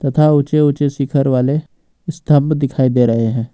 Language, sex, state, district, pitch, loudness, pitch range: Hindi, male, Jharkhand, Ranchi, 140 Hz, -15 LUFS, 130-150 Hz